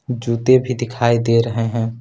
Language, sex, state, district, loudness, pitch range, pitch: Hindi, male, Jharkhand, Ranchi, -17 LUFS, 115-125 Hz, 115 Hz